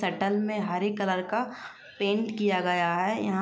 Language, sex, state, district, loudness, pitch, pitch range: Hindi, female, Uttar Pradesh, Jyotiba Phule Nagar, -28 LUFS, 195 Hz, 185-205 Hz